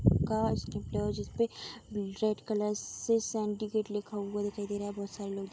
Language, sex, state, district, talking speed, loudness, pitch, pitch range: Hindi, female, Uttar Pradesh, Budaun, 215 wpm, -34 LUFS, 210 Hz, 205-215 Hz